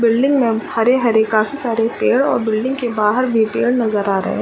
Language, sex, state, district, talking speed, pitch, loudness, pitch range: Hindi, female, Jharkhand, Sahebganj, 270 wpm, 230 Hz, -16 LUFS, 220-250 Hz